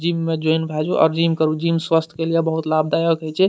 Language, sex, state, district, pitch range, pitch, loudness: Maithili, male, Bihar, Madhepura, 160-165 Hz, 160 Hz, -19 LUFS